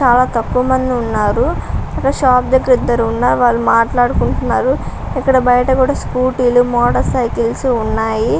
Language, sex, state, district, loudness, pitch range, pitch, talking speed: Telugu, female, Andhra Pradesh, Visakhapatnam, -14 LUFS, 235-255 Hz, 245 Hz, 230 wpm